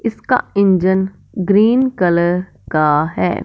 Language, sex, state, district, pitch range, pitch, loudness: Hindi, male, Punjab, Fazilka, 175-205 Hz, 190 Hz, -15 LUFS